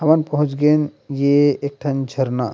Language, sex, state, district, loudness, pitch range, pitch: Chhattisgarhi, male, Chhattisgarh, Rajnandgaon, -18 LUFS, 135-150 Hz, 140 Hz